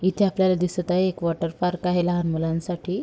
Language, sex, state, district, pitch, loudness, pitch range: Marathi, female, Maharashtra, Sindhudurg, 180 Hz, -24 LUFS, 170-185 Hz